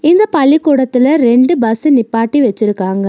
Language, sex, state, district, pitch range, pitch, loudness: Tamil, female, Tamil Nadu, Nilgiris, 225-295 Hz, 260 Hz, -11 LUFS